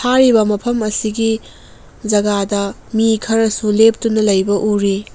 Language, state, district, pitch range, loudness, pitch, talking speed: Manipuri, Manipur, Imphal West, 205-225 Hz, -15 LUFS, 215 Hz, 95 wpm